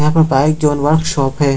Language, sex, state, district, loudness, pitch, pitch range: Hindi, male, Bihar, Muzaffarpur, -14 LUFS, 150 Hz, 140-155 Hz